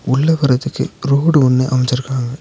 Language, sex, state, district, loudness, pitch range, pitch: Tamil, male, Tamil Nadu, Nilgiris, -15 LUFS, 125-145 Hz, 130 Hz